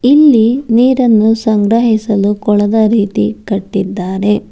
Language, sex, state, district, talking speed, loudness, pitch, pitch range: Kannada, female, Karnataka, Bangalore, 80 wpm, -11 LUFS, 215 Hz, 200-230 Hz